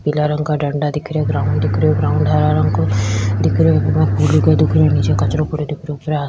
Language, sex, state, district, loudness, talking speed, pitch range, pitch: Rajasthani, female, Rajasthan, Churu, -16 LUFS, 255 wpm, 100-150 Hz, 145 Hz